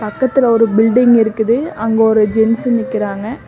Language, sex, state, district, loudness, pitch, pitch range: Tamil, female, Tamil Nadu, Namakkal, -13 LUFS, 225 Hz, 220-240 Hz